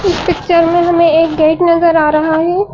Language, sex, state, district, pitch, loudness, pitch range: Hindi, female, Madhya Pradesh, Bhopal, 335 Hz, -11 LUFS, 320-345 Hz